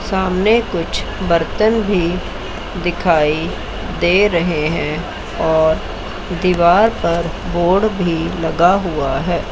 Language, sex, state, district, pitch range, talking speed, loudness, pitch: Hindi, female, Chandigarh, Chandigarh, 165-190 Hz, 100 wpm, -17 LUFS, 175 Hz